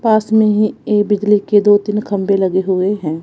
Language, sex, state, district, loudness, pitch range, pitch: Hindi, female, Punjab, Kapurthala, -14 LUFS, 195-210 Hz, 205 Hz